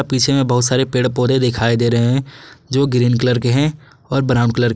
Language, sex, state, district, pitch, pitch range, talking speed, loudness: Hindi, male, Jharkhand, Garhwa, 125 Hz, 120-135 Hz, 240 wpm, -16 LUFS